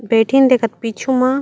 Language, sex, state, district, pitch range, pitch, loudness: Chhattisgarhi, female, Chhattisgarh, Raigarh, 225-265 Hz, 255 Hz, -15 LUFS